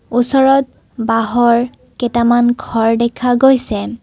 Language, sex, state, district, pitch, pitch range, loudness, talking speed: Assamese, female, Assam, Kamrup Metropolitan, 240 Hz, 230-250 Hz, -14 LUFS, 90 wpm